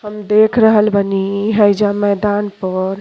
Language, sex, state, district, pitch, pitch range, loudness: Bhojpuri, female, Uttar Pradesh, Gorakhpur, 205 Hz, 200-210 Hz, -14 LUFS